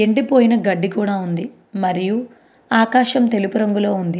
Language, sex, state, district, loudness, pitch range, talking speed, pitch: Telugu, female, Andhra Pradesh, Anantapur, -17 LUFS, 195-240 Hz, 140 wpm, 215 Hz